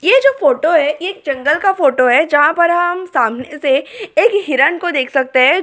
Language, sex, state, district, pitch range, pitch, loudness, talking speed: Hindi, female, Delhi, New Delhi, 275-355 Hz, 305 Hz, -14 LUFS, 245 wpm